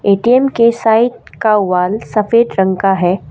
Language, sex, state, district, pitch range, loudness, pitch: Hindi, female, Assam, Kamrup Metropolitan, 190-235 Hz, -13 LUFS, 215 Hz